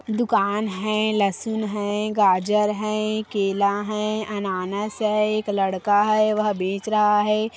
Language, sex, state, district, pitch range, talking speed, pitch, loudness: Hindi, female, Chhattisgarh, Kabirdham, 200-215 Hz, 135 wpm, 210 Hz, -22 LUFS